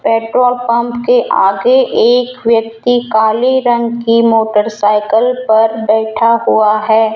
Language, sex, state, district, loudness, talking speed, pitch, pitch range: Hindi, female, Rajasthan, Jaipur, -11 LUFS, 115 wpm, 230 Hz, 220-245 Hz